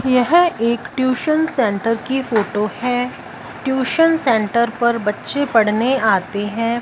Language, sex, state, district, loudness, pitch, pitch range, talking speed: Hindi, female, Punjab, Fazilka, -18 LUFS, 240 Hz, 225-265 Hz, 125 wpm